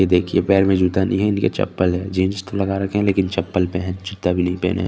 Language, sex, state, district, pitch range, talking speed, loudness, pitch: Hindi, male, Chandigarh, Chandigarh, 90-95 Hz, 285 wpm, -19 LUFS, 95 Hz